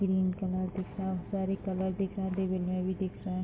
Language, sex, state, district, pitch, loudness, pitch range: Hindi, female, Bihar, Madhepura, 190 Hz, -33 LUFS, 185-190 Hz